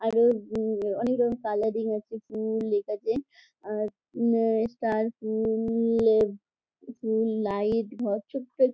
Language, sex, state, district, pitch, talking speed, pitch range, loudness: Bengali, female, West Bengal, Jhargram, 220 Hz, 125 wpm, 215-230 Hz, -27 LUFS